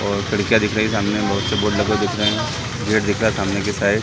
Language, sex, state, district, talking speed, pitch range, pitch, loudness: Hindi, male, Chhattisgarh, Sarguja, 325 wpm, 100-110 Hz, 105 Hz, -19 LUFS